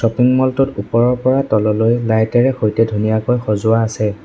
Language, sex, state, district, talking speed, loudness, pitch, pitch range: Assamese, male, Assam, Sonitpur, 170 wpm, -15 LUFS, 115 Hz, 110-125 Hz